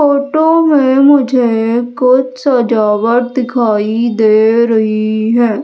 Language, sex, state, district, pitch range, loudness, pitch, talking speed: Hindi, female, Madhya Pradesh, Umaria, 220-265 Hz, -11 LUFS, 240 Hz, 95 wpm